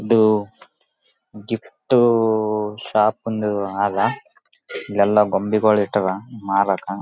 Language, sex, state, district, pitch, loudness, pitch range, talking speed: Kannada, male, Karnataka, Raichur, 105 Hz, -20 LUFS, 100-115 Hz, 75 wpm